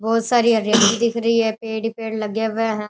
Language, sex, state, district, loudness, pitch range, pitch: Rajasthani, female, Rajasthan, Churu, -19 LUFS, 220-230 Hz, 225 Hz